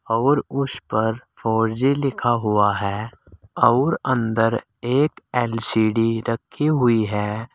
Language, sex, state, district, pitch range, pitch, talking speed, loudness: Hindi, male, Uttar Pradesh, Saharanpur, 110-125 Hz, 115 Hz, 120 wpm, -21 LUFS